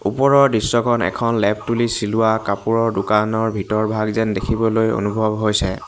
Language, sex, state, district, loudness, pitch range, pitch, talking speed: Assamese, male, Assam, Hailakandi, -18 LUFS, 105-115 Hz, 110 Hz, 120 wpm